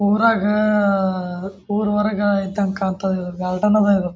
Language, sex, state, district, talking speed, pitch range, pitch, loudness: Kannada, male, Karnataka, Bijapur, 160 wpm, 190-210 Hz, 200 Hz, -19 LUFS